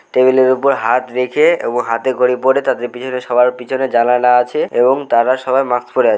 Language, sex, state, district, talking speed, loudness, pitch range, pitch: Bengali, male, West Bengal, Malda, 195 wpm, -14 LUFS, 125-130 Hz, 125 Hz